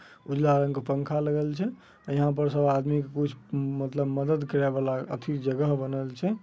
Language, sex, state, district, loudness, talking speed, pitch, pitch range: Magahi, male, Bihar, Samastipur, -28 LUFS, 175 wpm, 145 Hz, 135-150 Hz